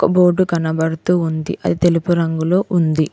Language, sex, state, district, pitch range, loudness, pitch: Telugu, female, Telangana, Mahabubabad, 160-180 Hz, -17 LUFS, 170 Hz